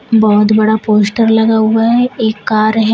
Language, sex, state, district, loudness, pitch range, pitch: Hindi, female, Uttar Pradesh, Shamli, -11 LUFS, 215-225 Hz, 220 Hz